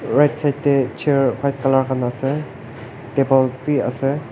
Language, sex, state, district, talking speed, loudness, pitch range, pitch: Nagamese, male, Nagaland, Kohima, 155 wpm, -19 LUFS, 130-140 Hz, 135 Hz